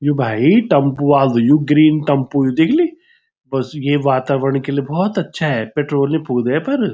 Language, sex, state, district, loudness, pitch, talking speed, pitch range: Garhwali, male, Uttarakhand, Tehri Garhwal, -16 LUFS, 145 Hz, 180 wpm, 135-160 Hz